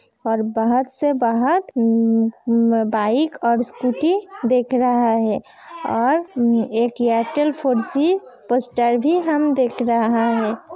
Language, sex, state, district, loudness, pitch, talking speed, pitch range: Hindi, female, Uttar Pradesh, Hamirpur, -19 LUFS, 240 Hz, 120 wpm, 230-280 Hz